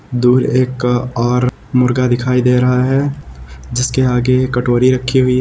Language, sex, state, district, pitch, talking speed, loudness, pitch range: Hindi, male, Uttar Pradesh, Lucknow, 125 Hz, 165 wpm, -14 LUFS, 125-130 Hz